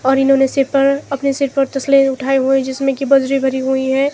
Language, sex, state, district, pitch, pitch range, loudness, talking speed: Hindi, female, Himachal Pradesh, Shimla, 270 Hz, 265-275 Hz, -15 LUFS, 245 wpm